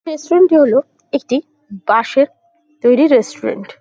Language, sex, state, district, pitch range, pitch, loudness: Bengali, female, West Bengal, Jhargram, 250-315 Hz, 285 Hz, -14 LUFS